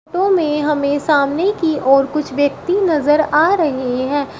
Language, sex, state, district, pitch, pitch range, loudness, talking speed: Hindi, female, Uttar Pradesh, Shamli, 300 Hz, 285-325 Hz, -16 LUFS, 165 wpm